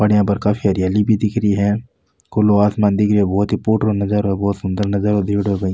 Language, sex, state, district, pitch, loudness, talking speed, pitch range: Rajasthani, male, Rajasthan, Nagaur, 105 Hz, -17 LUFS, 240 wpm, 100-105 Hz